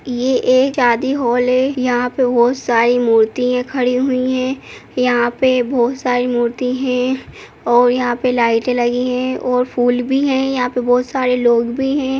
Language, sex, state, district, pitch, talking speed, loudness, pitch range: Kumaoni, female, Uttarakhand, Uttarkashi, 250 Hz, 175 wpm, -16 LUFS, 245-260 Hz